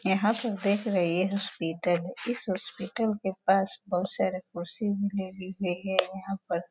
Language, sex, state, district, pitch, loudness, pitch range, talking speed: Hindi, female, Bihar, Sitamarhi, 190 Hz, -29 LUFS, 180-200 Hz, 170 wpm